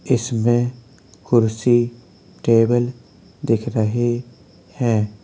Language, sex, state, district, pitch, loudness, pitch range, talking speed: Hindi, male, Uttar Pradesh, Hamirpur, 120 Hz, -19 LUFS, 115-120 Hz, 70 wpm